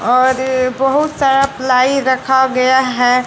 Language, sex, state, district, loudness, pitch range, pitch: Hindi, female, Bihar, West Champaran, -13 LUFS, 255-270 Hz, 260 Hz